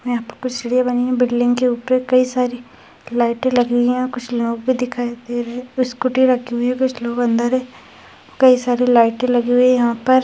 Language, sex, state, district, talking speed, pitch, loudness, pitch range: Hindi, female, Bihar, Jahanabad, 210 wpm, 245 Hz, -17 LUFS, 240-255 Hz